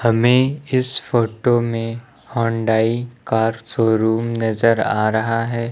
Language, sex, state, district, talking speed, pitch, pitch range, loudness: Hindi, male, Uttar Pradesh, Lucknow, 115 wpm, 115 Hz, 115-120 Hz, -19 LUFS